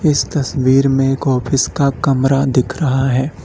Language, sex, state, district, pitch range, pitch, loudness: Hindi, male, Uttar Pradesh, Lalitpur, 130-140 Hz, 135 Hz, -15 LUFS